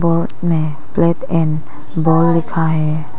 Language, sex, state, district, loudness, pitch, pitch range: Hindi, female, Arunachal Pradesh, Papum Pare, -16 LUFS, 160 Hz, 155-165 Hz